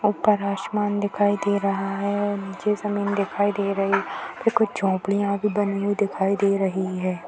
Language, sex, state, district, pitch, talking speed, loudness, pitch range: Hindi, female, Bihar, East Champaran, 200 Hz, 180 wpm, -23 LUFS, 195-205 Hz